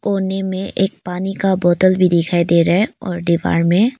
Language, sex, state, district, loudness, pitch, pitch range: Hindi, female, Arunachal Pradesh, Papum Pare, -16 LUFS, 185 Hz, 175-195 Hz